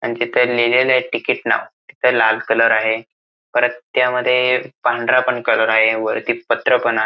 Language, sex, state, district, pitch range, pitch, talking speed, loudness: Marathi, male, Maharashtra, Aurangabad, 115-125 Hz, 120 Hz, 160 wpm, -16 LUFS